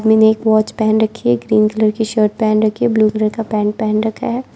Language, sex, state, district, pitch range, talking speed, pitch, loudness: Hindi, female, Arunachal Pradesh, Lower Dibang Valley, 215-220 Hz, 275 wpm, 215 Hz, -15 LUFS